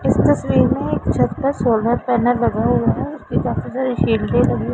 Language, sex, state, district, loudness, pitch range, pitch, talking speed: Hindi, female, Punjab, Pathankot, -18 LUFS, 235-255 Hz, 245 Hz, 205 wpm